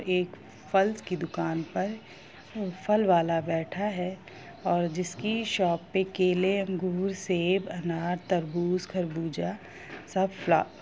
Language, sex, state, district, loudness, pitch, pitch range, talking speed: Hindi, female, Bihar, Gopalganj, -29 LUFS, 180 Hz, 170-195 Hz, 120 wpm